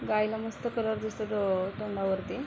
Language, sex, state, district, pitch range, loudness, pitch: Marathi, female, Maharashtra, Aurangabad, 195-220 Hz, -31 LUFS, 215 Hz